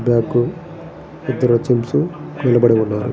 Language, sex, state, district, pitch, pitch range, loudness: Telugu, male, Andhra Pradesh, Srikakulam, 120 Hz, 115-130 Hz, -17 LUFS